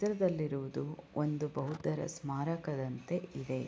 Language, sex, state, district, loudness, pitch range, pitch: Kannada, female, Karnataka, Chamarajanagar, -37 LUFS, 140-170 Hz, 150 Hz